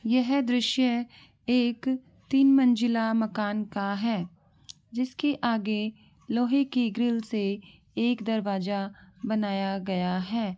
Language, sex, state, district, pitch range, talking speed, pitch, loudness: Hindi, female, Rajasthan, Churu, 200-245 Hz, 110 wpm, 225 Hz, -27 LUFS